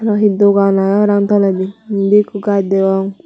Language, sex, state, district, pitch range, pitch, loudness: Chakma, female, Tripura, Unakoti, 195-205 Hz, 200 Hz, -13 LUFS